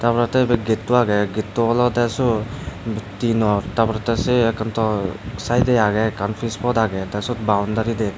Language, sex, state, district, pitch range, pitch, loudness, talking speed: Chakma, male, Tripura, Dhalai, 105-120 Hz, 110 Hz, -20 LUFS, 175 wpm